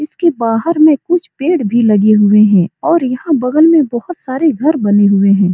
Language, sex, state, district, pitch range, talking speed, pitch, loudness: Hindi, female, Bihar, Supaul, 210-315 Hz, 205 wpm, 260 Hz, -12 LUFS